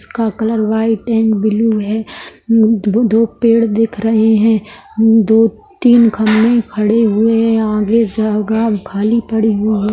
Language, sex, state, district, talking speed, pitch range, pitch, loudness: Hindi, female, Rajasthan, Nagaur, 140 wpm, 215-225 Hz, 225 Hz, -13 LUFS